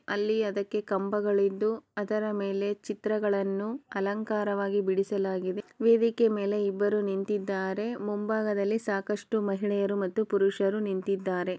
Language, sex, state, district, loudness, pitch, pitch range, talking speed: Kannada, female, Karnataka, Chamarajanagar, -29 LUFS, 205 Hz, 195-210 Hz, 95 wpm